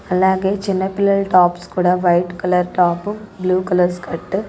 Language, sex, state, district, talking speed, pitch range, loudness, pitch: Telugu, female, Andhra Pradesh, Sri Satya Sai, 160 wpm, 180-195 Hz, -17 LUFS, 185 Hz